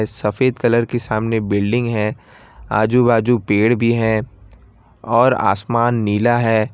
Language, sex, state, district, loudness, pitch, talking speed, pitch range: Hindi, male, Gujarat, Valsad, -17 LUFS, 110 Hz, 135 wpm, 105-120 Hz